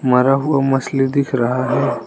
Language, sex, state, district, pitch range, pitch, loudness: Hindi, male, Arunachal Pradesh, Lower Dibang Valley, 125-135 Hz, 135 Hz, -17 LUFS